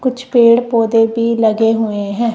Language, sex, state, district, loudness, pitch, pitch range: Hindi, female, Punjab, Kapurthala, -13 LUFS, 230 Hz, 225-235 Hz